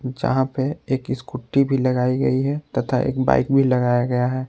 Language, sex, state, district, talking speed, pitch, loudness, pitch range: Hindi, male, Jharkhand, Palamu, 200 wpm, 130 Hz, -21 LUFS, 125-135 Hz